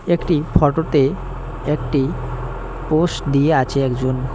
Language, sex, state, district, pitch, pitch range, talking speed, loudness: Bengali, male, West Bengal, Cooch Behar, 140 Hz, 135-155 Hz, 110 wpm, -19 LUFS